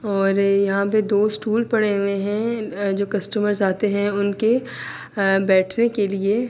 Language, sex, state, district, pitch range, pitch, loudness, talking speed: Urdu, female, Andhra Pradesh, Anantapur, 200-215 Hz, 205 Hz, -20 LUFS, 150 wpm